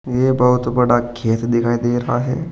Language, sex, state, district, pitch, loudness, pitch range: Hindi, male, Uttar Pradesh, Saharanpur, 120 Hz, -17 LUFS, 120-125 Hz